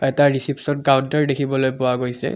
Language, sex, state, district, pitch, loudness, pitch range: Assamese, male, Assam, Kamrup Metropolitan, 135 Hz, -19 LUFS, 130-145 Hz